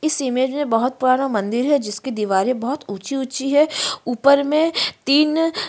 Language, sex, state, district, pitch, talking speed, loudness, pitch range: Hindi, female, Uttarakhand, Tehri Garhwal, 270 Hz, 170 wpm, -19 LUFS, 245-290 Hz